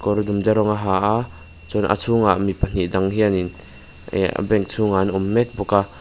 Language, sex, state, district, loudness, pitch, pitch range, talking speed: Mizo, male, Mizoram, Aizawl, -20 LUFS, 100 Hz, 95-105 Hz, 190 wpm